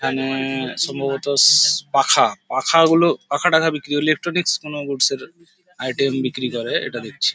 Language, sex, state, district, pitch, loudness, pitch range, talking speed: Bengali, male, West Bengal, Paschim Medinipur, 145 Hz, -18 LUFS, 135-160 Hz, 140 wpm